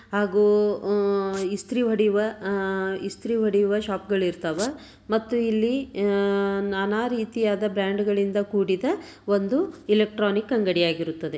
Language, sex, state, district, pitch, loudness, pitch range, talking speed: Kannada, female, Karnataka, Dharwad, 205 Hz, -24 LUFS, 195-220 Hz, 90 wpm